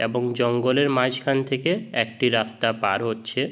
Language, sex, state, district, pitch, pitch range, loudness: Bengali, male, West Bengal, Jhargram, 125 Hz, 115-135 Hz, -23 LUFS